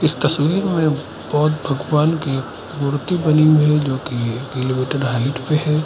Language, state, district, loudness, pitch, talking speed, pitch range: Hindi, Arunachal Pradesh, Lower Dibang Valley, -18 LUFS, 150 Hz, 165 wpm, 130-155 Hz